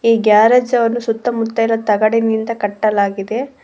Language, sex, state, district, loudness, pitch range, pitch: Kannada, female, Karnataka, Koppal, -15 LUFS, 215-230 Hz, 225 Hz